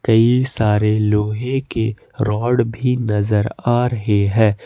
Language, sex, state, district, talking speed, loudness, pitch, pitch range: Hindi, male, Jharkhand, Ranchi, 130 wpm, -18 LUFS, 110 Hz, 105-120 Hz